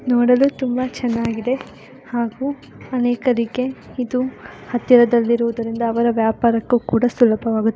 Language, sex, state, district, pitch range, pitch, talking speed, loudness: Kannada, female, Karnataka, Shimoga, 230-250 Hz, 240 Hz, 85 wpm, -19 LUFS